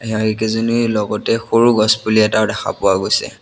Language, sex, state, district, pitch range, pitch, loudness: Assamese, male, Assam, Sonitpur, 110-115 Hz, 110 Hz, -16 LUFS